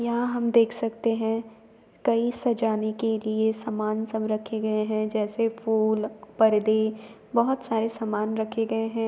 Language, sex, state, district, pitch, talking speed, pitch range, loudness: Hindi, female, Uttar Pradesh, Jalaun, 220 Hz, 150 wpm, 215-230 Hz, -26 LUFS